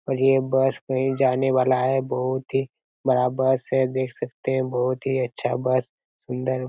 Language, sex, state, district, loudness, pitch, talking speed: Hindi, male, Chhattisgarh, Raigarh, -23 LUFS, 130 Hz, 190 wpm